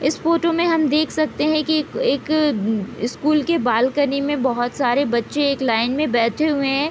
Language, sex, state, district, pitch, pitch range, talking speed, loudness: Hindi, female, Bihar, Gopalganj, 285 Hz, 245-310 Hz, 200 wpm, -19 LUFS